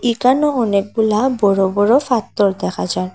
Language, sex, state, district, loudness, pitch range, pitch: Bengali, female, Assam, Hailakandi, -16 LUFS, 195-250 Hz, 210 Hz